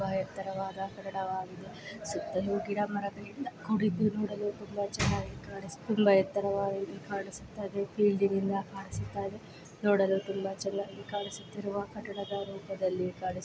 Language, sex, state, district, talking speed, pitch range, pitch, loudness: Kannada, female, Karnataka, Dakshina Kannada, 115 wpm, 195-205 Hz, 200 Hz, -33 LUFS